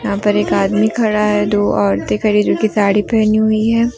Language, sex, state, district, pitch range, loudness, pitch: Hindi, female, Jharkhand, Deoghar, 205-220 Hz, -14 LUFS, 210 Hz